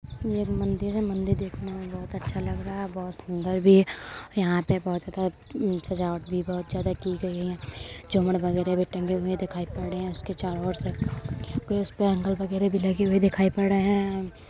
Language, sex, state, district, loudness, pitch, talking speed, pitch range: Hindi, female, Uttar Pradesh, Jyotiba Phule Nagar, -27 LUFS, 185 Hz, 210 wpm, 180-195 Hz